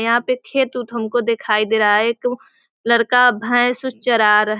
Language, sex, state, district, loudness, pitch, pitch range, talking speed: Hindi, female, Bihar, Sitamarhi, -17 LUFS, 235 Hz, 220-245 Hz, 210 wpm